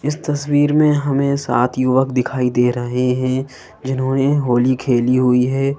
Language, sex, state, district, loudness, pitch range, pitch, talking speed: Hindi, female, Madhya Pradesh, Bhopal, -17 LUFS, 125-140 Hz, 130 Hz, 155 wpm